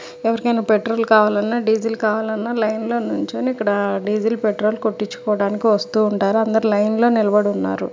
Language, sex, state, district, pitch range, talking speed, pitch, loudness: Telugu, male, Telangana, Karimnagar, 210-225 Hz, 145 wpm, 220 Hz, -19 LUFS